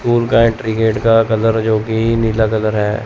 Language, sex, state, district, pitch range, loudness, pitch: Hindi, male, Chandigarh, Chandigarh, 110-115 Hz, -14 LUFS, 110 Hz